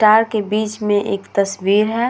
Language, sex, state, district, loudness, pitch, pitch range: Hindi, female, Uttar Pradesh, Muzaffarnagar, -18 LUFS, 210 Hz, 200-215 Hz